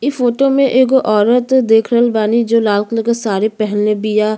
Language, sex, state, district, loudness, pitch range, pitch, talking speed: Bhojpuri, female, Uttar Pradesh, Gorakhpur, -13 LUFS, 215-250 Hz, 230 Hz, 190 wpm